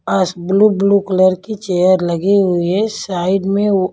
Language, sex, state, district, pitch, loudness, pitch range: Hindi, female, Punjab, Pathankot, 190 Hz, -15 LUFS, 185-200 Hz